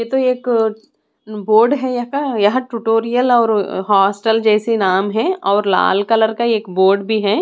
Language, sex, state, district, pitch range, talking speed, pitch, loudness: Hindi, female, Odisha, Khordha, 205-240 Hz, 180 wpm, 220 Hz, -15 LUFS